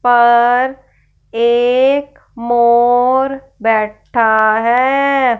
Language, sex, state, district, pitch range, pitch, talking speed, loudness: Hindi, female, Punjab, Fazilka, 235-265 Hz, 245 Hz, 55 wpm, -13 LUFS